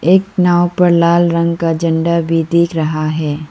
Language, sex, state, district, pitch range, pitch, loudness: Hindi, female, Arunachal Pradesh, Lower Dibang Valley, 160-175 Hz, 170 Hz, -13 LUFS